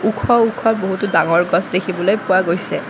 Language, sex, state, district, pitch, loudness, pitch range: Assamese, female, Assam, Kamrup Metropolitan, 190 Hz, -16 LUFS, 175-215 Hz